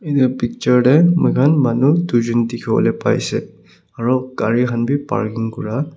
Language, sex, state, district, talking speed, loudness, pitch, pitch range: Nagamese, male, Nagaland, Kohima, 140 wpm, -17 LUFS, 125 Hz, 115-140 Hz